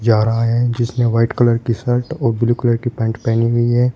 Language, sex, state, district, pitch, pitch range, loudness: Hindi, male, Uttar Pradesh, Shamli, 120 Hz, 115-120 Hz, -17 LUFS